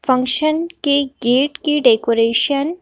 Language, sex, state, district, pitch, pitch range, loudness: Hindi, female, Madhya Pradesh, Bhopal, 280 Hz, 245-295 Hz, -16 LUFS